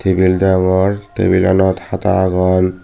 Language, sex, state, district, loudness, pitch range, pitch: Chakma, male, Tripura, Dhalai, -14 LUFS, 90-95 Hz, 95 Hz